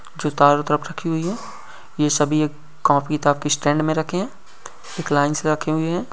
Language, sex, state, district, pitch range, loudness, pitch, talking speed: Hindi, male, Uttar Pradesh, Deoria, 150-165 Hz, -20 LUFS, 150 Hz, 215 wpm